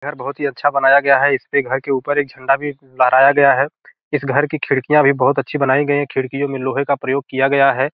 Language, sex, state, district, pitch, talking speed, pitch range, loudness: Hindi, male, Bihar, Gopalganj, 140 Hz, 265 wpm, 135-145 Hz, -16 LUFS